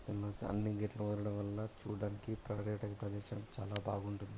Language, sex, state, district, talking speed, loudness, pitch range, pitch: Telugu, male, Telangana, Karimnagar, 125 wpm, -42 LUFS, 100-105 Hz, 105 Hz